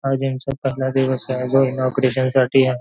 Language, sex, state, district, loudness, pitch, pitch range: Marathi, male, Maharashtra, Nagpur, -19 LUFS, 130 Hz, 130-135 Hz